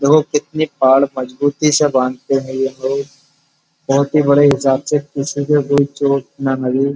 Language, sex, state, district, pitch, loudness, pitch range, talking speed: Hindi, male, Uttar Pradesh, Muzaffarnagar, 140 Hz, -15 LUFS, 135-145 Hz, 170 wpm